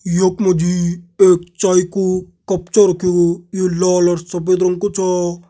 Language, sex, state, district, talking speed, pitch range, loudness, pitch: Garhwali, male, Uttarakhand, Tehri Garhwal, 165 wpm, 175-185 Hz, -16 LUFS, 180 Hz